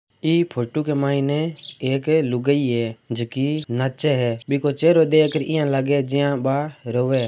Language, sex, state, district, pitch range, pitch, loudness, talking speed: Marwari, male, Rajasthan, Churu, 130-155 Hz, 140 Hz, -21 LUFS, 165 wpm